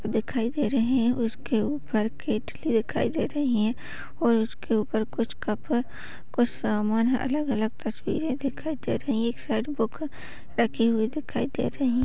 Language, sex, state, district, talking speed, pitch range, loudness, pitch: Hindi, female, Chhattisgarh, Raigarh, 170 wpm, 220-260 Hz, -27 LUFS, 235 Hz